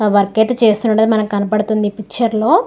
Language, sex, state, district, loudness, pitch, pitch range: Telugu, female, Andhra Pradesh, Guntur, -14 LUFS, 215 Hz, 210-225 Hz